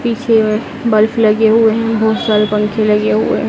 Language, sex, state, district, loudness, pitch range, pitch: Hindi, female, Madhya Pradesh, Dhar, -13 LUFS, 210-225 Hz, 220 Hz